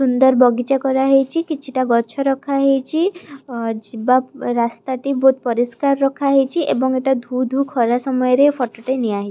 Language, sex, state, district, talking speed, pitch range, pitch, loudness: Odia, female, Odisha, Khordha, 140 wpm, 245-275 Hz, 260 Hz, -18 LUFS